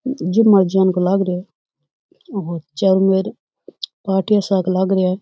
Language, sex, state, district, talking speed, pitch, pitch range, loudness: Rajasthani, female, Rajasthan, Churu, 115 wpm, 190 Hz, 185-200 Hz, -17 LUFS